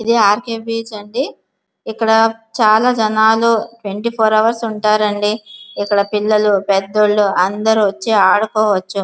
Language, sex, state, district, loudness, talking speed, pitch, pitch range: Telugu, female, Andhra Pradesh, Visakhapatnam, -15 LUFS, 125 wpm, 215 Hz, 205-225 Hz